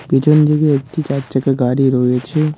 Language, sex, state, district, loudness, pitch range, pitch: Bengali, male, West Bengal, Cooch Behar, -15 LUFS, 130-150 Hz, 140 Hz